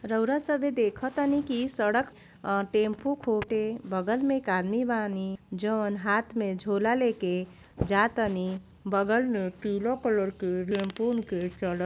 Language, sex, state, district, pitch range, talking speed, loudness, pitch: Bhojpuri, female, Uttar Pradesh, Gorakhpur, 195-235 Hz, 150 wpm, -28 LUFS, 215 Hz